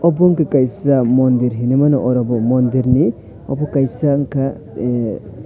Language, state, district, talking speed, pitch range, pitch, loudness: Kokborok, Tripura, West Tripura, 120 wpm, 120-140 Hz, 130 Hz, -16 LUFS